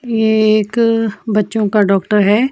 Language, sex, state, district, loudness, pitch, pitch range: Hindi, female, Himachal Pradesh, Shimla, -14 LUFS, 215 Hz, 210-225 Hz